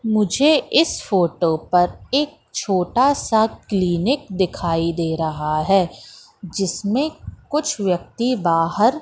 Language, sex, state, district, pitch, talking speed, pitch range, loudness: Hindi, female, Madhya Pradesh, Katni, 195 Hz, 105 wpm, 170-250 Hz, -20 LUFS